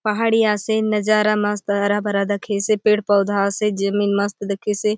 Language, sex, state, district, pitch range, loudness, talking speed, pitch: Halbi, female, Chhattisgarh, Bastar, 200-215 Hz, -19 LUFS, 145 wpm, 205 Hz